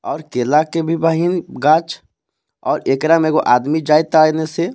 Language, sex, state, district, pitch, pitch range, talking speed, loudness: Bhojpuri, male, Jharkhand, Palamu, 160 Hz, 150-165 Hz, 165 wpm, -16 LUFS